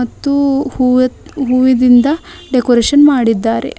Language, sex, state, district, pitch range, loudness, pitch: Kannada, female, Karnataka, Bidar, 245-275 Hz, -12 LUFS, 255 Hz